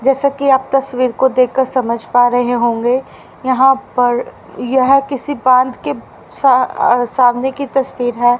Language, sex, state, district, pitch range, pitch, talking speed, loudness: Hindi, female, Haryana, Rohtak, 245-270 Hz, 255 Hz, 155 wpm, -14 LUFS